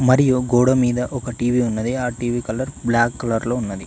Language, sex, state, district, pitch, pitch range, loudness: Telugu, male, Telangana, Mahabubabad, 120 Hz, 120-125 Hz, -20 LUFS